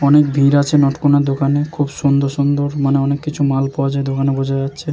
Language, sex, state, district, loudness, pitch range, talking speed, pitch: Bengali, male, West Bengal, Jalpaiguri, -16 LUFS, 140-145 Hz, 220 wpm, 140 Hz